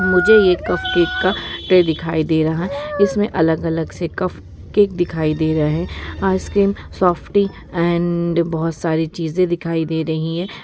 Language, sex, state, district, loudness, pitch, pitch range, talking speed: Hindi, female, Bihar, East Champaran, -18 LUFS, 170 Hz, 160-190 Hz, 175 wpm